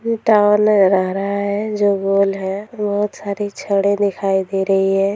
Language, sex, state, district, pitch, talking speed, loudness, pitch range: Hindi, female, Bihar, Sitamarhi, 200 Hz, 175 wpm, -17 LUFS, 195-210 Hz